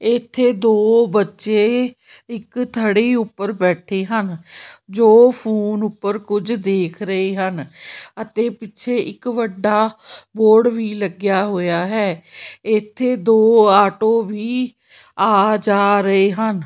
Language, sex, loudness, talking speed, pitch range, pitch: Punjabi, female, -17 LUFS, 115 wpm, 200-230 Hz, 215 Hz